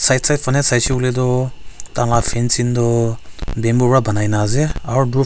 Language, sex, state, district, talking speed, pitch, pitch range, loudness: Nagamese, male, Nagaland, Kohima, 185 wpm, 120 Hz, 115-130 Hz, -16 LUFS